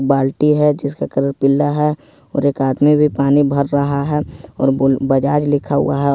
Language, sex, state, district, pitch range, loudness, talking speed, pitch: Hindi, male, Jharkhand, Ranchi, 140-145 Hz, -16 LUFS, 205 wpm, 140 Hz